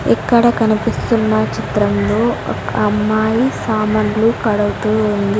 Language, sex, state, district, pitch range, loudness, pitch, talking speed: Telugu, female, Andhra Pradesh, Sri Satya Sai, 210-225 Hz, -15 LUFS, 215 Hz, 90 wpm